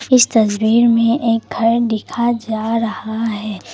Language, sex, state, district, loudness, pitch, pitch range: Hindi, female, Assam, Kamrup Metropolitan, -16 LUFS, 230 Hz, 220-235 Hz